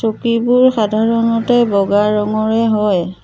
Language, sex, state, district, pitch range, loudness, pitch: Assamese, female, Assam, Sonitpur, 210-230 Hz, -14 LUFS, 220 Hz